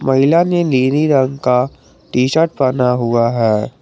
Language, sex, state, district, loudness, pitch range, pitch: Hindi, male, Jharkhand, Garhwa, -15 LUFS, 125-145 Hz, 130 Hz